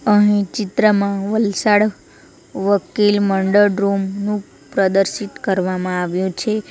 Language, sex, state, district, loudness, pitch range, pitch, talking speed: Gujarati, female, Gujarat, Valsad, -17 LUFS, 195-210 Hz, 200 Hz, 100 wpm